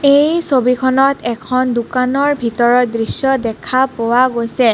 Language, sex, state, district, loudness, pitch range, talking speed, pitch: Assamese, female, Assam, Kamrup Metropolitan, -14 LUFS, 235-270 Hz, 115 wpm, 255 Hz